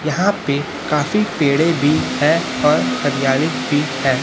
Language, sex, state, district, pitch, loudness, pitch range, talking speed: Hindi, male, Chhattisgarh, Raipur, 145 Hz, -17 LUFS, 135-155 Hz, 140 wpm